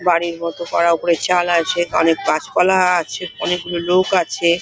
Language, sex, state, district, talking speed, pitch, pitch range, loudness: Bengali, female, West Bengal, Paschim Medinipur, 195 wpm, 175 Hz, 170-180 Hz, -17 LUFS